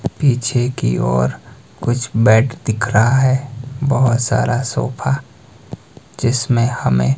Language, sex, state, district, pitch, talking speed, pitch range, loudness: Hindi, male, Himachal Pradesh, Shimla, 120 Hz, 110 wpm, 115-130 Hz, -17 LUFS